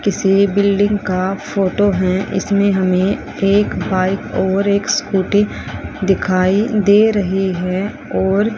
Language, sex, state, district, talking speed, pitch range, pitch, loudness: Hindi, female, Haryana, Rohtak, 120 wpm, 190-205 Hz, 195 Hz, -16 LUFS